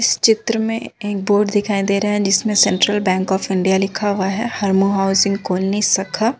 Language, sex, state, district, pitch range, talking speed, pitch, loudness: Hindi, female, Jharkhand, Ranchi, 195-210 Hz, 205 wpm, 200 Hz, -17 LUFS